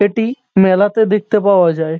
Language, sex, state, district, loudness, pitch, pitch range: Bengali, male, West Bengal, North 24 Parganas, -13 LUFS, 205 Hz, 190-220 Hz